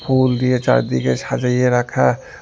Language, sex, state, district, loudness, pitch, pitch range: Bengali, male, West Bengal, Alipurduar, -17 LUFS, 125 Hz, 75-130 Hz